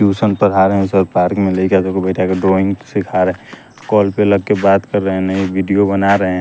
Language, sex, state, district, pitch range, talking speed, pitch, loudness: Hindi, male, Bihar, West Champaran, 95-100 Hz, 180 wpm, 95 Hz, -14 LUFS